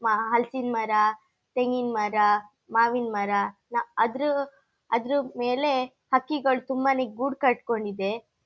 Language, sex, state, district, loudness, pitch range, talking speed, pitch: Kannada, female, Karnataka, Shimoga, -26 LUFS, 215-265 Hz, 100 wpm, 240 Hz